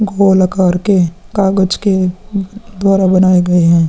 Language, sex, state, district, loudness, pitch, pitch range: Hindi, male, Uttar Pradesh, Muzaffarnagar, -12 LUFS, 190 Hz, 180-195 Hz